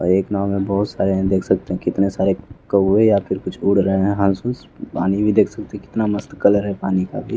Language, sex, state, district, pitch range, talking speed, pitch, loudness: Hindi, male, Bihar, West Champaran, 95-100 Hz, 250 wpm, 100 Hz, -19 LUFS